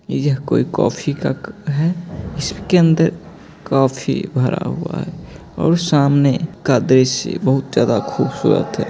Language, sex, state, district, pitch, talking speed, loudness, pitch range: Angika, male, Bihar, Begusarai, 145 Hz, 130 wpm, -17 LUFS, 135-165 Hz